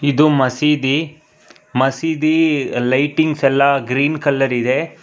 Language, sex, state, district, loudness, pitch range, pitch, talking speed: Kannada, male, Karnataka, Bangalore, -16 LUFS, 135-155 Hz, 140 Hz, 95 wpm